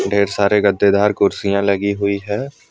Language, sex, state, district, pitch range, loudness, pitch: Hindi, male, Jharkhand, Deoghar, 100-105 Hz, -17 LUFS, 100 Hz